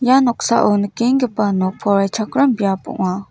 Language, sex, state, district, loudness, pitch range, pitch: Garo, female, Meghalaya, West Garo Hills, -17 LUFS, 195-245 Hz, 210 Hz